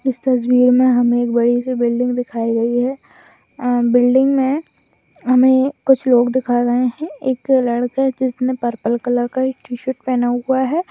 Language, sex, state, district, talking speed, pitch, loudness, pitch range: Hindi, female, Bihar, Madhepura, 170 wpm, 250 Hz, -17 LUFS, 245-260 Hz